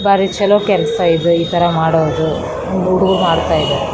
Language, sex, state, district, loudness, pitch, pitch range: Kannada, female, Karnataka, Raichur, -14 LUFS, 175 Hz, 165-190 Hz